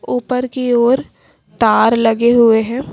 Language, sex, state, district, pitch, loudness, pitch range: Hindi, female, Delhi, New Delhi, 240 Hz, -14 LUFS, 230-250 Hz